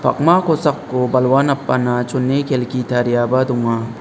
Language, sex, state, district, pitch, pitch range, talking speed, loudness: Garo, male, Meghalaya, West Garo Hills, 130 Hz, 120-140 Hz, 135 wpm, -17 LUFS